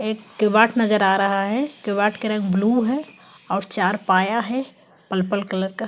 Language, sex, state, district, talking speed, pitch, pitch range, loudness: Hindi, female, Chhattisgarh, Kabirdham, 185 wpm, 210 Hz, 195-230 Hz, -21 LUFS